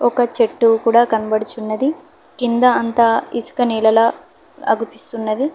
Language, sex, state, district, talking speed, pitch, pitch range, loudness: Telugu, female, Telangana, Hyderabad, 95 wpm, 235 Hz, 225-245 Hz, -16 LUFS